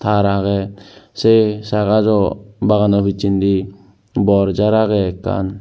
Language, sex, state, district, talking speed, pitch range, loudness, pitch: Chakma, male, Tripura, Unakoti, 115 wpm, 100-105 Hz, -16 LUFS, 100 Hz